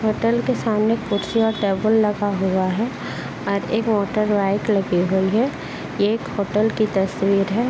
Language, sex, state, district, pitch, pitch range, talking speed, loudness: Hindi, female, Uttar Pradesh, Muzaffarnagar, 210 Hz, 200-225 Hz, 155 wpm, -20 LUFS